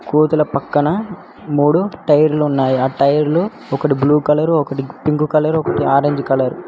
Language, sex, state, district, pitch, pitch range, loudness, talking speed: Telugu, male, Telangana, Hyderabad, 150 Hz, 140-155 Hz, -16 LUFS, 155 wpm